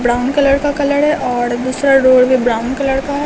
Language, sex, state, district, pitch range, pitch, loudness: Hindi, female, Bihar, Katihar, 250-285 Hz, 265 Hz, -13 LUFS